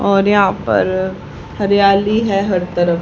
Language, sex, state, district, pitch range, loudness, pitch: Hindi, male, Haryana, Charkhi Dadri, 185-200 Hz, -15 LUFS, 195 Hz